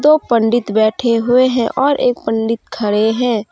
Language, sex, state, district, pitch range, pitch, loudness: Hindi, female, Jharkhand, Deoghar, 220-250 Hz, 235 Hz, -15 LUFS